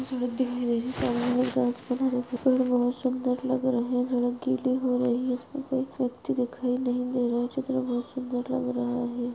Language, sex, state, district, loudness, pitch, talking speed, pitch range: Hindi, male, Uttar Pradesh, Budaun, -28 LUFS, 250 Hz, 185 wpm, 245-255 Hz